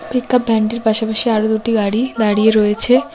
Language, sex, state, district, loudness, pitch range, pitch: Bengali, female, West Bengal, Cooch Behar, -15 LUFS, 215-235 Hz, 220 Hz